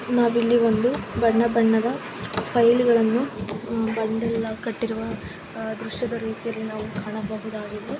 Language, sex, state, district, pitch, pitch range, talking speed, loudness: Kannada, female, Karnataka, Dharwad, 225 Hz, 220-235 Hz, 100 wpm, -24 LUFS